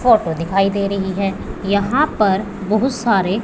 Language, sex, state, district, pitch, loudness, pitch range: Hindi, female, Punjab, Pathankot, 200 Hz, -18 LUFS, 195-220 Hz